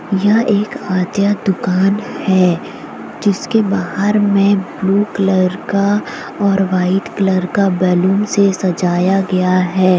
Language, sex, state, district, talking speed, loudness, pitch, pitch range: Hindi, female, Jharkhand, Deoghar, 120 wpm, -15 LUFS, 195 Hz, 185-205 Hz